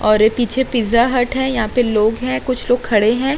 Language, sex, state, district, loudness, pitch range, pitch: Hindi, female, Uttar Pradesh, Muzaffarnagar, -16 LUFS, 220-255 Hz, 245 Hz